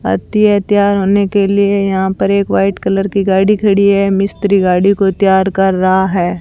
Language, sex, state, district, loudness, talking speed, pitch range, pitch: Hindi, female, Rajasthan, Bikaner, -12 LUFS, 205 wpm, 190-200 Hz, 195 Hz